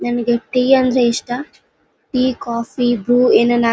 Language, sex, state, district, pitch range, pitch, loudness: Kannada, female, Karnataka, Bellary, 240-255 Hz, 245 Hz, -16 LUFS